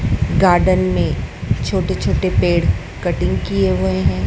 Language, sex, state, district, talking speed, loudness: Hindi, male, Madhya Pradesh, Dhar, 125 wpm, -17 LUFS